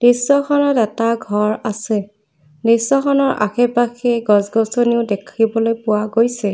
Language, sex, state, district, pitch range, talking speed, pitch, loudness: Assamese, female, Assam, Kamrup Metropolitan, 210-240 Hz, 90 wpm, 230 Hz, -17 LUFS